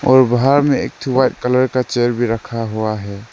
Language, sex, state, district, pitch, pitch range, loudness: Hindi, male, Arunachal Pradesh, Lower Dibang Valley, 120 Hz, 115-130 Hz, -16 LUFS